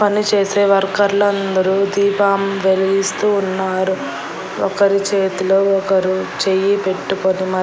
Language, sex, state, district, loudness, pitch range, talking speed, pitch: Telugu, female, Andhra Pradesh, Annamaya, -16 LUFS, 190-200 Hz, 110 wpm, 195 Hz